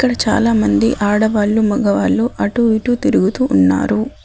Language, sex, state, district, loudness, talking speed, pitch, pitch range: Telugu, female, Telangana, Adilabad, -15 LUFS, 115 wpm, 220 Hz, 200-235 Hz